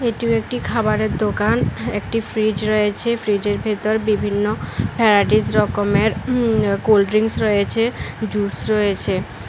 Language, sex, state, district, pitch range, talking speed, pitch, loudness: Bengali, female, Tripura, West Tripura, 205-225 Hz, 115 wpm, 215 Hz, -19 LUFS